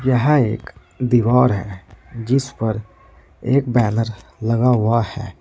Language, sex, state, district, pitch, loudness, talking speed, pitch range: Hindi, male, Uttar Pradesh, Saharanpur, 115 Hz, -18 LUFS, 120 wpm, 110-125 Hz